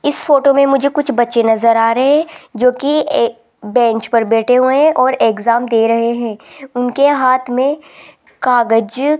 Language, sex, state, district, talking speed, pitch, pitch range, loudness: Hindi, female, Rajasthan, Jaipur, 170 wpm, 250 Hz, 230-280 Hz, -13 LUFS